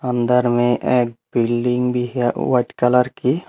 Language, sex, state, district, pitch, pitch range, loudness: Hindi, male, Tripura, Unakoti, 125 Hz, 120-125 Hz, -18 LUFS